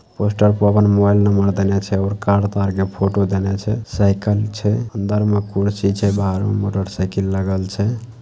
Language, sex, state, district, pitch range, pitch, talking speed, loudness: Maithili, male, Bihar, Saharsa, 100-105 Hz, 100 Hz, 185 wpm, -18 LUFS